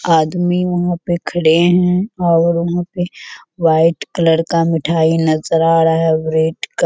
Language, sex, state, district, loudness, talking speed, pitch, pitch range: Hindi, female, Bihar, Kishanganj, -15 LUFS, 165 wpm, 165 Hz, 160-175 Hz